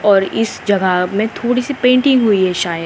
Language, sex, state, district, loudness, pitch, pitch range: Hindi, female, Uttarakhand, Uttarkashi, -15 LUFS, 205 Hz, 185-245 Hz